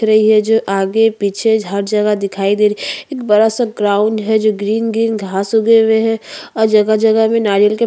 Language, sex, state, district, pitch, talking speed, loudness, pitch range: Hindi, female, Chhattisgarh, Bastar, 215 Hz, 220 wpm, -14 LUFS, 205-225 Hz